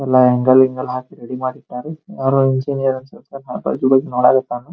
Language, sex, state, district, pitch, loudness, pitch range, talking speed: Kannada, male, Karnataka, Bijapur, 130 Hz, -16 LUFS, 125-135 Hz, 140 wpm